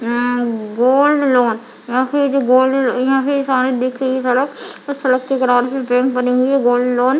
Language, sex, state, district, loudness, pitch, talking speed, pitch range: Hindi, female, Chhattisgarh, Bilaspur, -16 LUFS, 255 Hz, 140 wpm, 245-270 Hz